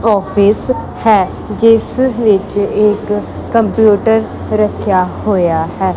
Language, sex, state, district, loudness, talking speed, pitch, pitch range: Punjabi, female, Punjab, Kapurthala, -13 LUFS, 90 wpm, 210 Hz, 195-225 Hz